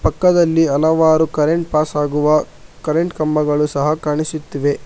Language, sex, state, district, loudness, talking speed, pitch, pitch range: Kannada, male, Karnataka, Bangalore, -16 LUFS, 110 wpm, 155 Hz, 150-160 Hz